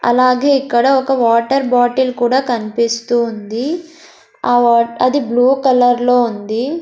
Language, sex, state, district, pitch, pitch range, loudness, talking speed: Telugu, female, Andhra Pradesh, Sri Satya Sai, 245 Hz, 235-265 Hz, -14 LUFS, 125 wpm